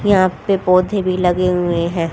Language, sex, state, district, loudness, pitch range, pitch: Hindi, female, Haryana, Jhajjar, -16 LUFS, 180-190 Hz, 185 Hz